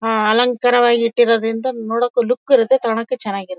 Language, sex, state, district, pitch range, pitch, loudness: Kannada, male, Karnataka, Bellary, 225-245 Hz, 235 Hz, -16 LUFS